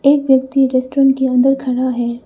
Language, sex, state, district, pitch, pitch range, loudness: Hindi, female, Arunachal Pradesh, Lower Dibang Valley, 265 Hz, 255-270 Hz, -14 LUFS